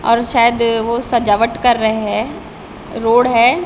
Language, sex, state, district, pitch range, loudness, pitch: Hindi, female, Maharashtra, Gondia, 225-240 Hz, -14 LUFS, 235 Hz